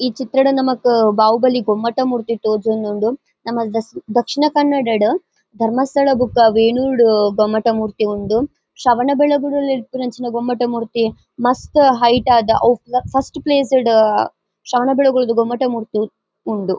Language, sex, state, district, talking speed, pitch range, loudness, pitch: Tulu, female, Karnataka, Dakshina Kannada, 135 wpm, 225-265 Hz, -16 LUFS, 240 Hz